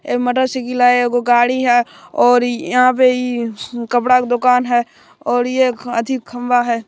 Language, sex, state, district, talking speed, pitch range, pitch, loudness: Maithili, male, Bihar, Supaul, 175 wpm, 240-250 Hz, 245 Hz, -15 LUFS